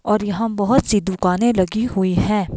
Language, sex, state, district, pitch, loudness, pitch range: Hindi, female, Himachal Pradesh, Shimla, 210 Hz, -18 LUFS, 190-230 Hz